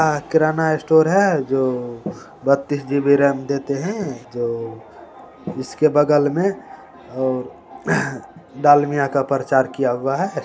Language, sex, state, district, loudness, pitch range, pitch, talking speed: Hindi, male, Bihar, Saran, -19 LUFS, 130-155 Hz, 140 Hz, 120 wpm